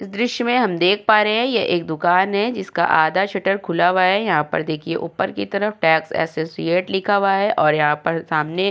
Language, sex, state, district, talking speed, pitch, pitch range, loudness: Hindi, female, Uttar Pradesh, Jyotiba Phule Nagar, 235 wpm, 185 Hz, 160-205 Hz, -19 LUFS